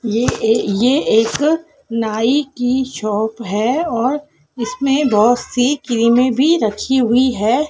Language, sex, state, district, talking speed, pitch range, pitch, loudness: Hindi, female, Madhya Pradesh, Dhar, 130 wpm, 220-265 Hz, 245 Hz, -16 LUFS